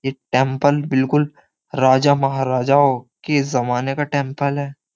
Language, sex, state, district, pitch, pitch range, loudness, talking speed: Hindi, male, Uttar Pradesh, Jyotiba Phule Nagar, 135 Hz, 130-145 Hz, -18 LUFS, 120 wpm